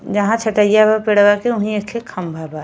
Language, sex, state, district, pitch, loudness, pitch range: Bhojpuri, female, Uttar Pradesh, Ghazipur, 210 Hz, -15 LUFS, 205-220 Hz